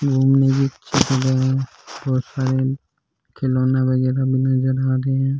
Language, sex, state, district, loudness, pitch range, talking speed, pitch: Rajasthani, male, Rajasthan, Churu, -19 LUFS, 130-135 Hz, 90 wpm, 130 Hz